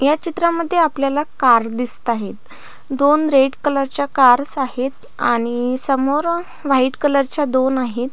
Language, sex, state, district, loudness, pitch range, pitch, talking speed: Marathi, female, Maharashtra, Pune, -17 LUFS, 255-295 Hz, 275 Hz, 140 wpm